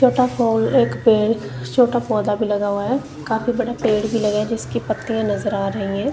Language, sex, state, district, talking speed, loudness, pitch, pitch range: Hindi, female, Punjab, Kapurthala, 235 wpm, -19 LUFS, 220 Hz, 205-240 Hz